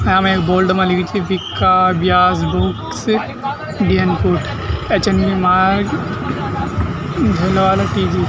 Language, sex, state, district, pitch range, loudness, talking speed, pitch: Garhwali, male, Uttarakhand, Tehri Garhwal, 180-190 Hz, -16 LUFS, 110 wpm, 185 Hz